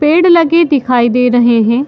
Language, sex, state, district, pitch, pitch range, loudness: Hindi, female, Bihar, Saharsa, 255 Hz, 245-325 Hz, -10 LUFS